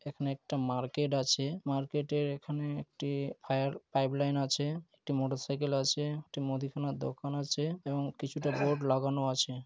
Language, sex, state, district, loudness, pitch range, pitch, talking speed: Bengali, male, West Bengal, Malda, -34 LUFS, 135-145 Hz, 140 Hz, 155 wpm